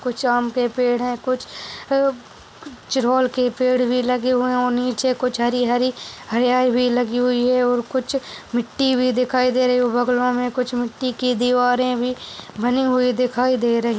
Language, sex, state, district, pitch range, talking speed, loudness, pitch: Hindi, male, Bihar, Darbhanga, 245-255 Hz, 195 wpm, -20 LUFS, 250 Hz